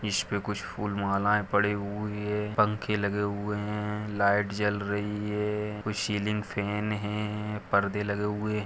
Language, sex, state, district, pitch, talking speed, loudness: Hindi, male, Jharkhand, Sahebganj, 105 Hz, 165 wpm, -29 LUFS